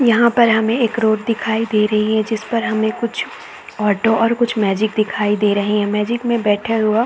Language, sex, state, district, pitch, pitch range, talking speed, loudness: Hindi, female, Chhattisgarh, Raigarh, 220 Hz, 210-230 Hz, 210 wpm, -17 LUFS